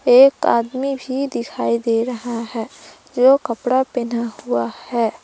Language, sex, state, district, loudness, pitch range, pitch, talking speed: Hindi, female, Jharkhand, Palamu, -19 LUFS, 235-260 Hz, 245 Hz, 135 wpm